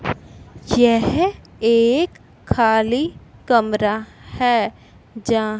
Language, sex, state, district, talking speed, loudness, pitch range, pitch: Hindi, female, Punjab, Fazilka, 65 wpm, -19 LUFS, 220-245 Hz, 230 Hz